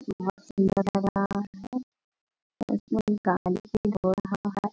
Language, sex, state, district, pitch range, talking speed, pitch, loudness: Hindi, female, Jharkhand, Jamtara, 195-210 Hz, 125 wpm, 200 Hz, -28 LUFS